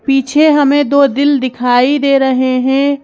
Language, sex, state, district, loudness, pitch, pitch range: Hindi, female, Madhya Pradesh, Bhopal, -11 LUFS, 275 Hz, 260-285 Hz